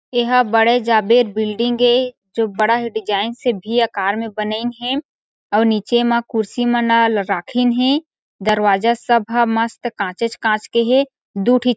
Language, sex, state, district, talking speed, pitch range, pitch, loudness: Chhattisgarhi, female, Chhattisgarh, Sarguja, 170 wpm, 215-245 Hz, 235 Hz, -17 LUFS